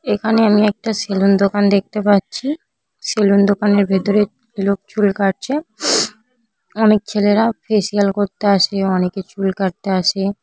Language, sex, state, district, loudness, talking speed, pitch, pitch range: Bengali, female, West Bengal, Jhargram, -16 LUFS, 145 wpm, 205 Hz, 195-215 Hz